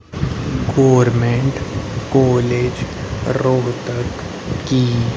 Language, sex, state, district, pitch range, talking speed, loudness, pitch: Hindi, male, Haryana, Rohtak, 120-130 Hz, 45 wpm, -18 LUFS, 125 Hz